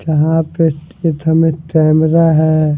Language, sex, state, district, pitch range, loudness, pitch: Hindi, male, Punjab, Fazilka, 155-165 Hz, -13 LUFS, 160 Hz